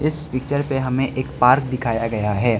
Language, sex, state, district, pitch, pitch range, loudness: Hindi, male, Arunachal Pradesh, Lower Dibang Valley, 130 Hz, 115-135 Hz, -20 LUFS